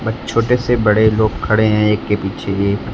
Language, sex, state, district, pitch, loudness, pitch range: Hindi, male, Maharashtra, Mumbai Suburban, 110 Hz, -16 LUFS, 105-110 Hz